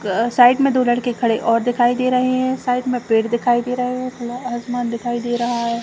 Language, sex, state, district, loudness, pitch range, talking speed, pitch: Hindi, female, Chhattisgarh, Raigarh, -18 LUFS, 235-250 Hz, 245 wpm, 245 Hz